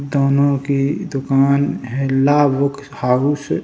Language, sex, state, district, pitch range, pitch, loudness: Hindi, male, Bihar, Jahanabad, 135-140 Hz, 140 Hz, -17 LUFS